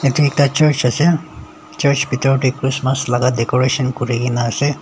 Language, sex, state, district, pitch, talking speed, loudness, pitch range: Nagamese, male, Nagaland, Dimapur, 135 Hz, 175 wpm, -16 LUFS, 125-140 Hz